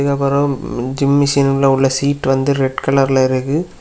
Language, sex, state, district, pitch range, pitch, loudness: Tamil, male, Tamil Nadu, Kanyakumari, 135-140 Hz, 140 Hz, -15 LUFS